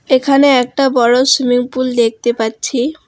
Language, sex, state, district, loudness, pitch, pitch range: Bengali, female, West Bengal, Alipurduar, -13 LUFS, 250 Hz, 240-270 Hz